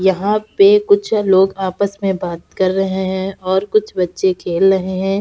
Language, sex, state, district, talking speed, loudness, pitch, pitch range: Hindi, female, Uttar Pradesh, Jalaun, 185 wpm, -16 LUFS, 190 Hz, 190-200 Hz